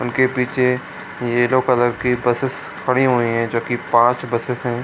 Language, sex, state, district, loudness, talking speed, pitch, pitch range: Hindi, male, Bihar, Supaul, -18 LUFS, 185 wpm, 125 Hz, 120-125 Hz